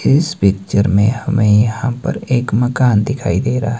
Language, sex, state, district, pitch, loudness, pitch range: Hindi, male, Himachal Pradesh, Shimla, 115 Hz, -15 LUFS, 105-125 Hz